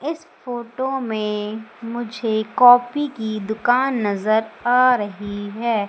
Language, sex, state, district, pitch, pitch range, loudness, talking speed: Hindi, female, Madhya Pradesh, Umaria, 230 Hz, 215-250 Hz, -20 LUFS, 110 wpm